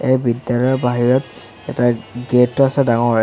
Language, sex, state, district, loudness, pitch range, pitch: Assamese, male, Assam, Sonitpur, -17 LUFS, 120-130 Hz, 125 Hz